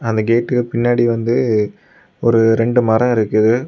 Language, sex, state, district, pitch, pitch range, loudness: Tamil, male, Tamil Nadu, Kanyakumari, 115 Hz, 115-120 Hz, -15 LUFS